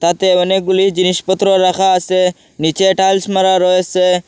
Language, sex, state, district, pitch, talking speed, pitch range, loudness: Bengali, male, Assam, Hailakandi, 185 Hz, 125 wpm, 180-190 Hz, -13 LUFS